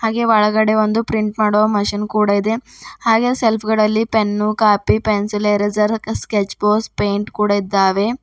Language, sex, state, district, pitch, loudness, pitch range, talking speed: Kannada, female, Karnataka, Bidar, 215 Hz, -17 LUFS, 205-220 Hz, 155 wpm